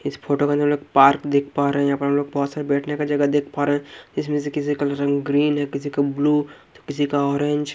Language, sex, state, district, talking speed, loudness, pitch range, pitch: Hindi, male, Haryana, Rohtak, 265 wpm, -21 LUFS, 140-145 Hz, 145 Hz